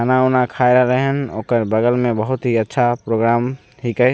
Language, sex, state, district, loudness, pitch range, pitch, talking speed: Maithili, male, Bihar, Begusarai, -17 LUFS, 115-130 Hz, 125 Hz, 190 wpm